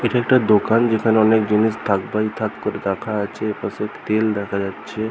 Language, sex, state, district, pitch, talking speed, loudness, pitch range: Bengali, male, West Bengal, Purulia, 110 Hz, 190 wpm, -19 LUFS, 105-110 Hz